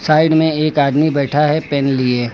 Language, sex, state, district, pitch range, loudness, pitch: Hindi, male, Uttar Pradesh, Lucknow, 140-155 Hz, -15 LUFS, 150 Hz